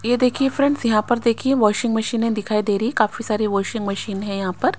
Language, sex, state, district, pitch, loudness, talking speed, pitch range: Hindi, female, Haryana, Rohtak, 225 Hz, -20 LUFS, 240 wpm, 210-245 Hz